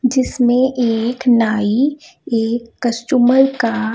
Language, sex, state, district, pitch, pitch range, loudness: Hindi, female, Chhattisgarh, Raipur, 245 Hz, 230-260 Hz, -16 LUFS